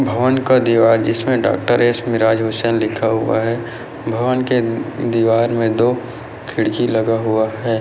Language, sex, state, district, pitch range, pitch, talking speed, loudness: Hindi, male, Bihar, Jahanabad, 110-120 Hz, 115 Hz, 145 wpm, -16 LUFS